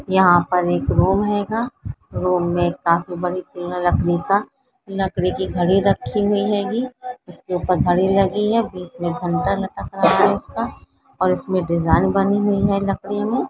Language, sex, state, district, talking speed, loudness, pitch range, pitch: Hindi, female, Maharashtra, Pune, 145 wpm, -19 LUFS, 180-205 Hz, 190 Hz